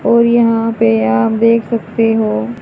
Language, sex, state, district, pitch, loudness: Hindi, female, Haryana, Charkhi Dadri, 225 Hz, -13 LUFS